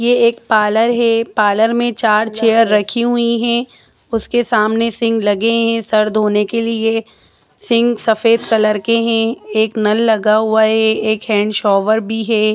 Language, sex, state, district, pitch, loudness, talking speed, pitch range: Hindi, female, Bihar, Jahanabad, 225 Hz, -14 LUFS, 155 wpm, 215-230 Hz